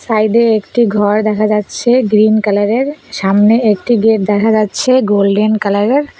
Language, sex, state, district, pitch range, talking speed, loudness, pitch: Bengali, female, West Bengal, Cooch Behar, 205-235 Hz, 165 wpm, -12 LUFS, 215 Hz